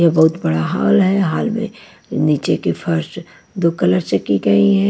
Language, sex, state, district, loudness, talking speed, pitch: Hindi, female, Punjab, Pathankot, -16 LUFS, 195 wpm, 150 Hz